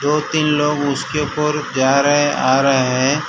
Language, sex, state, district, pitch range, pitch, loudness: Hindi, male, Gujarat, Valsad, 135-150 Hz, 145 Hz, -16 LUFS